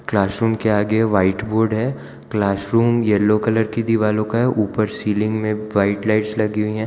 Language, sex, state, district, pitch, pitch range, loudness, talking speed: Hindi, male, Gujarat, Valsad, 110 Hz, 105-110 Hz, -19 LUFS, 185 wpm